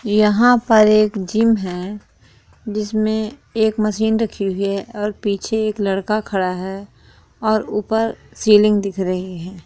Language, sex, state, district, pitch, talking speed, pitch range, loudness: Hindi, female, Jharkhand, Sahebganj, 210 Hz, 145 wpm, 195-220 Hz, -18 LUFS